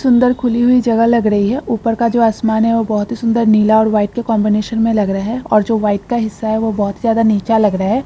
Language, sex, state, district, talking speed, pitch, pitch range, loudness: Hindi, female, Bihar, Bhagalpur, 280 wpm, 225 Hz, 210-235 Hz, -14 LUFS